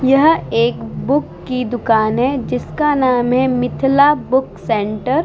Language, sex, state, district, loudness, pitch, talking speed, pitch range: Hindi, female, Uttar Pradesh, Muzaffarnagar, -16 LUFS, 255 Hz, 150 wpm, 235-275 Hz